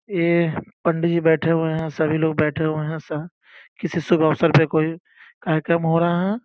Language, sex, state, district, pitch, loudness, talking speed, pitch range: Hindi, male, Uttar Pradesh, Gorakhpur, 165 Hz, -21 LUFS, 195 wpm, 160-170 Hz